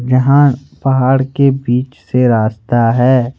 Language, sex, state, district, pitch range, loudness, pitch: Hindi, male, Jharkhand, Ranchi, 120-135 Hz, -13 LUFS, 130 Hz